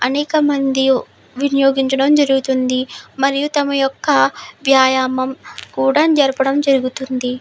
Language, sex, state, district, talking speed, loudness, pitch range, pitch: Telugu, female, Andhra Pradesh, Chittoor, 80 wpm, -16 LUFS, 260-285 Hz, 270 Hz